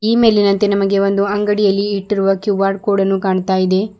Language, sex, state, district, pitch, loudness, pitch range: Kannada, female, Karnataka, Bidar, 200 Hz, -15 LUFS, 195-205 Hz